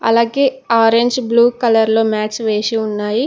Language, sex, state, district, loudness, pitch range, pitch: Telugu, female, Telangana, Mahabubabad, -15 LUFS, 220-240 Hz, 230 Hz